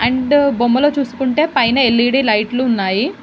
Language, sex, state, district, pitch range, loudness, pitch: Telugu, female, Telangana, Mahabubabad, 235-280 Hz, -15 LUFS, 255 Hz